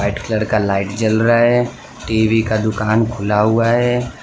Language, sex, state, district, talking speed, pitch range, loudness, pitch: Hindi, male, Gujarat, Valsad, 185 wpm, 105-115 Hz, -16 LUFS, 110 Hz